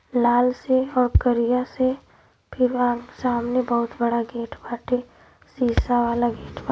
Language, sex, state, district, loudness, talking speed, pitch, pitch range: Hindi, female, Uttar Pradesh, Ghazipur, -23 LUFS, 145 wpm, 245 Hz, 240-250 Hz